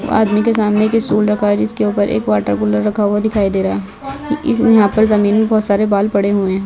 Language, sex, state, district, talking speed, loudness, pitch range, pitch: Hindi, female, Chhattisgarh, Bastar, 260 wpm, -14 LUFS, 190-220 Hz, 205 Hz